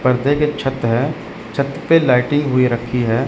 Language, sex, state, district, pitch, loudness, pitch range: Hindi, male, Chandigarh, Chandigarh, 135 Hz, -17 LUFS, 125-145 Hz